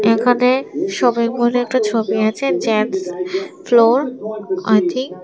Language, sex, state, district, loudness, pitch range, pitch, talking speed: Bengali, female, Tripura, West Tripura, -17 LUFS, 210-245 Hz, 225 Hz, 80 wpm